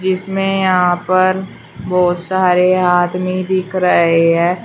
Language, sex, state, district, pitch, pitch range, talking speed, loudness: Hindi, female, Uttar Pradesh, Shamli, 185 Hz, 180-185 Hz, 115 wpm, -14 LUFS